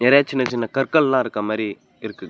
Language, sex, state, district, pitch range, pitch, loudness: Tamil, male, Tamil Nadu, Namakkal, 110-135 Hz, 125 Hz, -20 LUFS